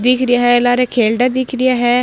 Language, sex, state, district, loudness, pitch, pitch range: Marwari, female, Rajasthan, Nagaur, -14 LUFS, 245 Hz, 245-255 Hz